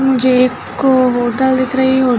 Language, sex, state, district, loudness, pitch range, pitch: Hindi, female, Chhattisgarh, Bilaspur, -13 LUFS, 250-265 Hz, 255 Hz